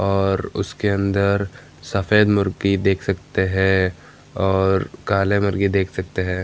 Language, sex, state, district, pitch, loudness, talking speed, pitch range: Hindi, male, Bihar, Gaya, 100 Hz, -20 LUFS, 130 wpm, 95-100 Hz